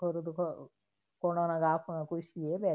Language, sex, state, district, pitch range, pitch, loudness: Tulu, female, Karnataka, Dakshina Kannada, 160-170 Hz, 165 Hz, -34 LUFS